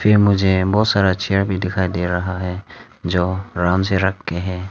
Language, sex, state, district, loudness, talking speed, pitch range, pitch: Hindi, male, Arunachal Pradesh, Longding, -18 LUFS, 190 wpm, 90-100 Hz, 95 Hz